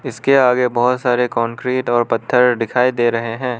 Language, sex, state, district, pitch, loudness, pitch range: Hindi, male, Arunachal Pradesh, Lower Dibang Valley, 125 Hz, -16 LUFS, 120-125 Hz